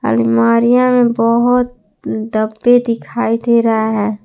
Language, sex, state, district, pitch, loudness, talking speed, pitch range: Hindi, female, Jharkhand, Palamu, 230 Hz, -14 LUFS, 115 wpm, 215-245 Hz